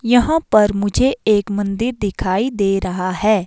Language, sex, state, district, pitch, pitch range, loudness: Hindi, female, Himachal Pradesh, Shimla, 205 Hz, 195-240 Hz, -17 LUFS